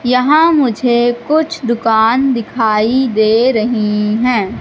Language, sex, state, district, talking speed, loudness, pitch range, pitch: Hindi, female, Madhya Pradesh, Katni, 105 wpm, -13 LUFS, 220-255 Hz, 240 Hz